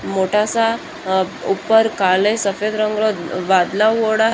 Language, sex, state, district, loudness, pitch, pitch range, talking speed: Marwari, female, Rajasthan, Churu, -17 LUFS, 210 Hz, 190-220 Hz, 140 wpm